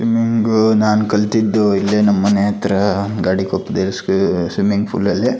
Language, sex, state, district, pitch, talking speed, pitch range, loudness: Kannada, male, Karnataka, Shimoga, 105 Hz, 120 wpm, 100-110 Hz, -16 LUFS